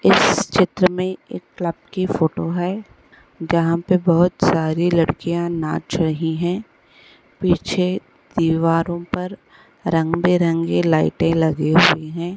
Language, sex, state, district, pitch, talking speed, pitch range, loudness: Hindi, female, Uttar Pradesh, Etah, 170 Hz, 115 wpm, 165-180 Hz, -19 LUFS